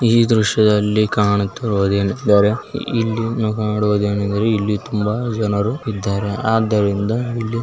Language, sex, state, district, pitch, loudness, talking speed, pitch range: Kannada, male, Karnataka, Belgaum, 105 Hz, -18 LUFS, 110 wpm, 105-115 Hz